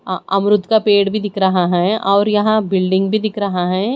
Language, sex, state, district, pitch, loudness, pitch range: Hindi, female, Chhattisgarh, Raipur, 200 Hz, -15 LUFS, 190-210 Hz